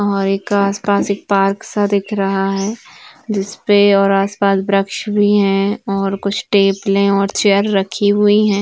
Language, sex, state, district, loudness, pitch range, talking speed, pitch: Hindi, female, Chhattisgarh, Bilaspur, -15 LUFS, 195-205 Hz, 165 wpm, 200 Hz